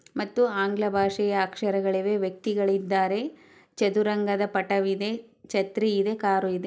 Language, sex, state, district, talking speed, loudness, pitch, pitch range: Kannada, female, Karnataka, Chamarajanagar, 110 wpm, -26 LUFS, 200 Hz, 195-210 Hz